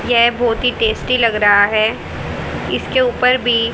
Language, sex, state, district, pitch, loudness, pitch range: Hindi, female, Haryana, Rohtak, 235 Hz, -15 LUFS, 220-245 Hz